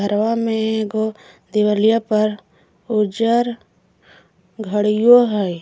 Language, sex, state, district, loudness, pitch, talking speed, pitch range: Magahi, female, Jharkhand, Palamu, -18 LUFS, 215 Hz, 85 wpm, 210-225 Hz